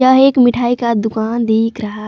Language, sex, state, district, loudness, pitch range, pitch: Hindi, female, Jharkhand, Palamu, -14 LUFS, 220-250 Hz, 235 Hz